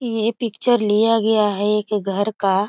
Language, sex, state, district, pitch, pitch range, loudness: Hindi, female, Bihar, Bhagalpur, 210 Hz, 205-225 Hz, -19 LUFS